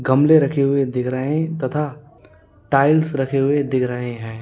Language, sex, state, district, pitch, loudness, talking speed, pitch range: Hindi, male, Uttar Pradesh, Lalitpur, 135 Hz, -19 LUFS, 175 wpm, 125-145 Hz